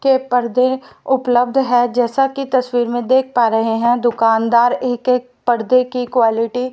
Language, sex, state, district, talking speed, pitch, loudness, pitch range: Hindi, female, Haryana, Rohtak, 170 wpm, 245 Hz, -16 LUFS, 240-260 Hz